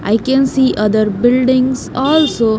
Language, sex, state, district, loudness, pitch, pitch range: English, female, Haryana, Jhajjar, -13 LUFS, 255 Hz, 220-265 Hz